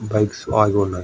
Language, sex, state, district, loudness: Telugu, male, Andhra Pradesh, Srikakulam, -19 LUFS